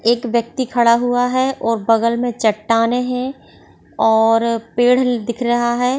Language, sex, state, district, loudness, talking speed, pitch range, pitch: Hindi, female, Bihar, Gopalganj, -17 LUFS, 150 wpm, 230-245 Hz, 240 Hz